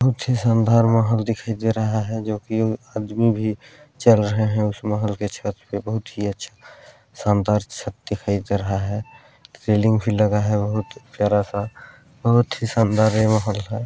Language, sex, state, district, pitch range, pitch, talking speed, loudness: Hindi, male, Chhattisgarh, Balrampur, 105-115 Hz, 110 Hz, 175 wpm, -21 LUFS